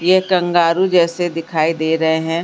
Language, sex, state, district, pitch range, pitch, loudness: Hindi, female, Bihar, Supaul, 160-175 Hz, 170 Hz, -16 LUFS